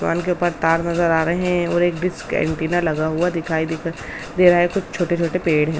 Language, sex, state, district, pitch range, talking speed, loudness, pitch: Hindi, female, Bihar, Samastipur, 160-175 Hz, 280 wpm, -19 LUFS, 170 Hz